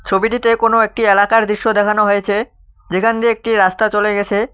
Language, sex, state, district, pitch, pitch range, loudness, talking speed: Bengali, male, West Bengal, Cooch Behar, 215 Hz, 205-230 Hz, -14 LUFS, 170 wpm